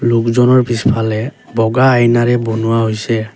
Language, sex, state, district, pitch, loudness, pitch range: Assamese, male, Assam, Kamrup Metropolitan, 115 Hz, -13 LUFS, 115-120 Hz